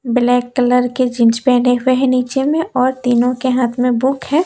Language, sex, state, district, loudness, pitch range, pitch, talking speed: Hindi, female, Jharkhand, Deoghar, -15 LUFS, 245-260 Hz, 250 Hz, 215 wpm